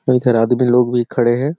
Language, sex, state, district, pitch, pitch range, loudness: Hindi, male, Chhattisgarh, Sarguja, 125 Hz, 120-125 Hz, -15 LUFS